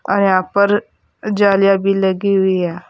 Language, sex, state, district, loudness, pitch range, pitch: Hindi, female, Uttar Pradesh, Saharanpur, -15 LUFS, 190-200 Hz, 195 Hz